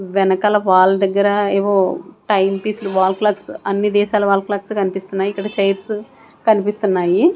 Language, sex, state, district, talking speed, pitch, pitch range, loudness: Telugu, female, Andhra Pradesh, Sri Satya Sai, 155 wpm, 200 Hz, 195-210 Hz, -17 LUFS